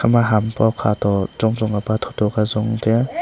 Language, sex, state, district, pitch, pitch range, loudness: Wancho, male, Arunachal Pradesh, Longding, 110 Hz, 105-110 Hz, -19 LUFS